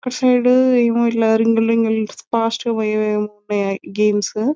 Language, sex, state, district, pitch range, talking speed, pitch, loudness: Telugu, female, Telangana, Nalgonda, 210-235 Hz, 145 wpm, 225 Hz, -17 LUFS